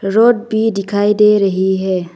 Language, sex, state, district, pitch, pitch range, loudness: Hindi, female, Arunachal Pradesh, Longding, 205 Hz, 190-220 Hz, -14 LUFS